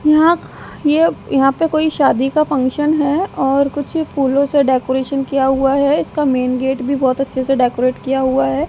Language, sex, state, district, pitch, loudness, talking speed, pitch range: Hindi, female, Haryana, Jhajjar, 275 Hz, -16 LUFS, 195 wpm, 265-295 Hz